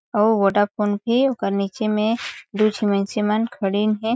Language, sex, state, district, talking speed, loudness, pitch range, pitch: Chhattisgarhi, female, Chhattisgarh, Jashpur, 175 wpm, -21 LUFS, 205-220 Hz, 210 Hz